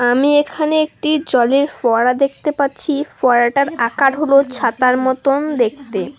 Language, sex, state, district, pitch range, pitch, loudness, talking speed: Bengali, female, West Bengal, Alipurduar, 250-290 Hz, 275 Hz, -16 LUFS, 125 wpm